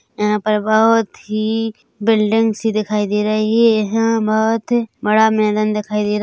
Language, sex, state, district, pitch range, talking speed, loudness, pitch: Hindi, female, Chhattisgarh, Bilaspur, 210-225 Hz, 155 wpm, -16 LUFS, 215 Hz